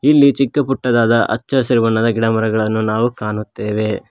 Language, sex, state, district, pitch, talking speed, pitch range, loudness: Kannada, male, Karnataka, Koppal, 115 Hz, 130 wpm, 110-130 Hz, -16 LUFS